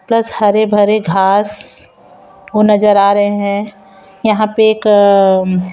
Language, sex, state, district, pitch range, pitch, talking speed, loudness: Hindi, female, Chhattisgarh, Raipur, 195-215 Hz, 205 Hz, 135 wpm, -11 LUFS